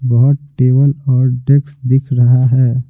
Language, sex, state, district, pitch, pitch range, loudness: Hindi, male, Bihar, Patna, 130 Hz, 125-140 Hz, -13 LUFS